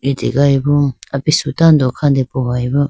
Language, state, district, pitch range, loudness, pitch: Idu Mishmi, Arunachal Pradesh, Lower Dibang Valley, 130-145 Hz, -14 LUFS, 140 Hz